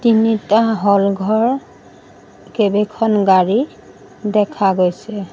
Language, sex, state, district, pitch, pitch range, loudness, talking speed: Assamese, female, Assam, Sonitpur, 210 Hz, 200-225 Hz, -16 LUFS, 80 wpm